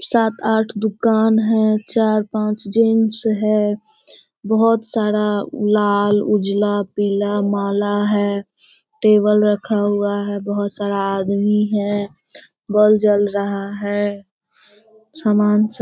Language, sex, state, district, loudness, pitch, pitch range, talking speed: Hindi, female, Bihar, Sitamarhi, -17 LUFS, 210 Hz, 205-215 Hz, 115 wpm